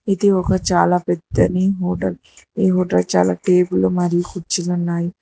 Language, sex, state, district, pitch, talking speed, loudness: Telugu, female, Telangana, Hyderabad, 175 Hz, 140 wpm, -18 LUFS